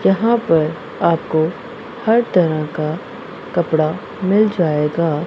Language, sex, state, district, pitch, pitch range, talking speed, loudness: Hindi, female, Punjab, Pathankot, 175 Hz, 155-225 Hz, 100 wpm, -18 LUFS